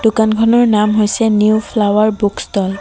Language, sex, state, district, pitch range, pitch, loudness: Assamese, female, Assam, Kamrup Metropolitan, 205-220 Hz, 215 Hz, -13 LUFS